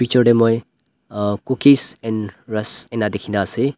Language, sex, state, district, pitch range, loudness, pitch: Nagamese, male, Nagaland, Dimapur, 105-130 Hz, -18 LUFS, 115 Hz